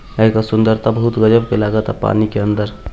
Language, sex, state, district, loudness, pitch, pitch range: Hindi, male, Bihar, East Champaran, -15 LUFS, 110 Hz, 105-110 Hz